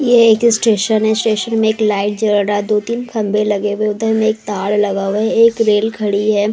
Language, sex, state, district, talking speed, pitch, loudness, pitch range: Hindi, female, Maharashtra, Mumbai Suburban, 255 wpm, 215 Hz, -15 LUFS, 205-225 Hz